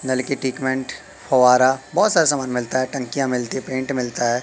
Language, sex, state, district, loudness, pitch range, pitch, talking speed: Hindi, male, Madhya Pradesh, Katni, -20 LUFS, 125-135 Hz, 130 Hz, 190 wpm